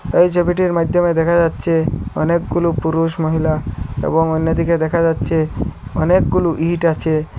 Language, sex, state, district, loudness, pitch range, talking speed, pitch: Bengali, male, Assam, Hailakandi, -17 LUFS, 160-170 Hz, 120 wpm, 165 Hz